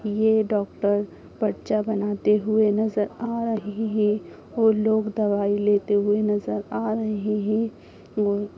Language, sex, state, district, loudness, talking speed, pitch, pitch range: Hindi, male, Bihar, Gaya, -23 LUFS, 125 wpm, 210 Hz, 205-220 Hz